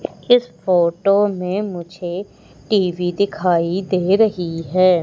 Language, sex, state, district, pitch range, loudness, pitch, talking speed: Hindi, female, Madhya Pradesh, Umaria, 175-200 Hz, -18 LUFS, 185 Hz, 105 wpm